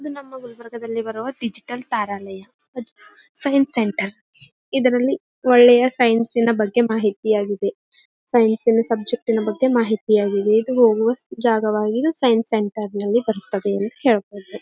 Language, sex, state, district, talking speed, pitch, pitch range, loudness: Kannada, female, Karnataka, Gulbarga, 120 wpm, 230 Hz, 215-245 Hz, -19 LUFS